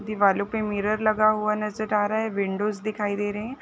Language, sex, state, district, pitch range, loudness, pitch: Hindi, female, Chhattisgarh, Bilaspur, 205-215 Hz, -25 LUFS, 210 Hz